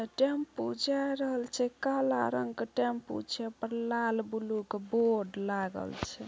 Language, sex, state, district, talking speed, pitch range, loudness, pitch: Maithili, female, Bihar, Samastipur, 160 wpm, 195-250 Hz, -33 LUFS, 225 Hz